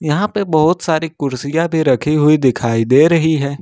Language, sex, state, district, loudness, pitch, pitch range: Hindi, male, Jharkhand, Ranchi, -14 LUFS, 155 Hz, 140-165 Hz